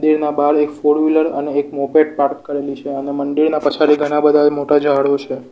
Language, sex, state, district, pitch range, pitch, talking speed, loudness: Gujarati, male, Gujarat, Valsad, 140-150 Hz, 145 Hz, 195 wpm, -16 LUFS